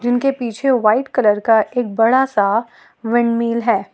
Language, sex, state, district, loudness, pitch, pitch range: Hindi, female, Jharkhand, Ranchi, -16 LUFS, 235 Hz, 220-245 Hz